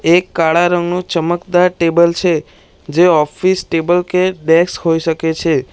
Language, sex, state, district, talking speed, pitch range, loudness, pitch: Gujarati, male, Gujarat, Valsad, 145 wpm, 165-180 Hz, -14 LUFS, 170 Hz